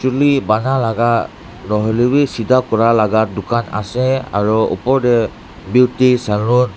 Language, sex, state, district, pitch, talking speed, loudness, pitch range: Nagamese, male, Nagaland, Dimapur, 115 Hz, 135 wpm, -15 LUFS, 105-125 Hz